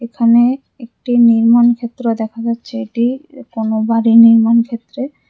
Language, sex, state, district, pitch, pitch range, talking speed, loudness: Bengali, female, Tripura, West Tripura, 235 Hz, 230-240 Hz, 125 wpm, -13 LUFS